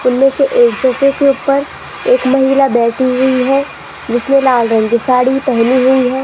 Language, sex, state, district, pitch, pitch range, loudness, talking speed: Hindi, female, Rajasthan, Jaipur, 260 Hz, 250-275 Hz, -12 LUFS, 145 wpm